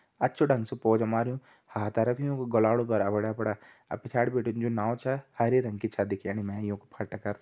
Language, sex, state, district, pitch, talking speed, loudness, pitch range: Garhwali, male, Uttarakhand, Tehri Garhwal, 115 Hz, 200 wpm, -29 LUFS, 105-125 Hz